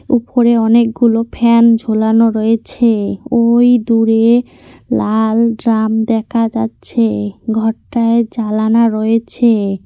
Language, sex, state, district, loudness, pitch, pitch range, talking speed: Bengali, female, West Bengal, Cooch Behar, -13 LUFS, 230 Hz, 220-235 Hz, 85 wpm